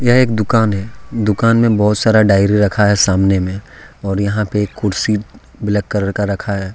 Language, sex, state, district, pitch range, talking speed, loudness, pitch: Hindi, male, Jharkhand, Deoghar, 100-110 Hz, 195 wpm, -15 LUFS, 105 Hz